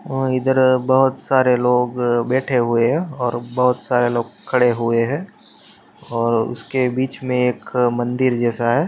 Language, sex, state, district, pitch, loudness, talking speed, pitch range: Hindi, male, Maharashtra, Pune, 125 Hz, -18 LUFS, 160 wpm, 120-130 Hz